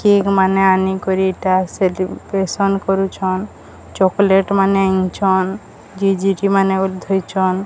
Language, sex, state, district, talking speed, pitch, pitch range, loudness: Odia, female, Odisha, Sambalpur, 80 wpm, 190 Hz, 190-195 Hz, -16 LUFS